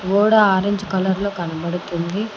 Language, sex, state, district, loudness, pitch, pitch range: Telugu, female, Telangana, Mahabubabad, -19 LUFS, 190 Hz, 175-205 Hz